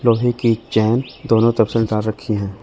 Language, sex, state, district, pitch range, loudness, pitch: Hindi, male, Chandigarh, Chandigarh, 110-120 Hz, -18 LUFS, 115 Hz